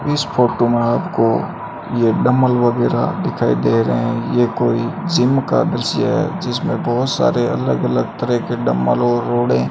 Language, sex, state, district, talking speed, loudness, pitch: Hindi, male, Rajasthan, Bikaner, 160 wpm, -17 LUFS, 120 Hz